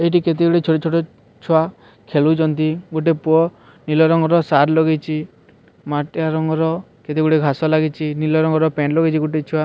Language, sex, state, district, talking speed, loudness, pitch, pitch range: Odia, male, Odisha, Sambalpur, 155 wpm, -18 LUFS, 160 Hz, 155-160 Hz